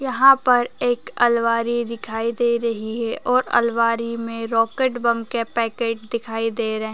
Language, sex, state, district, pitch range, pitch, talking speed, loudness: Hindi, female, Uttar Pradesh, Jyotiba Phule Nagar, 230-240 Hz, 230 Hz, 165 wpm, -21 LUFS